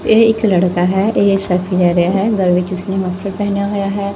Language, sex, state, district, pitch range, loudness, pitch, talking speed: Punjabi, female, Punjab, Fazilka, 180-200 Hz, -15 LUFS, 195 Hz, 230 wpm